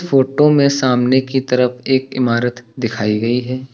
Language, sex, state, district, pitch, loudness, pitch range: Hindi, male, Uttar Pradesh, Lucknow, 130 Hz, -16 LUFS, 120-135 Hz